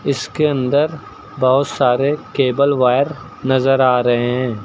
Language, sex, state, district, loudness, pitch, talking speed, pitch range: Hindi, male, Uttar Pradesh, Lucknow, -16 LUFS, 135 Hz, 130 wpm, 125-140 Hz